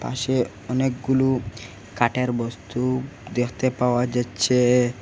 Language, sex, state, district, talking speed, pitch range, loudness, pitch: Bengali, male, Assam, Hailakandi, 85 wpm, 120-130 Hz, -23 LUFS, 125 Hz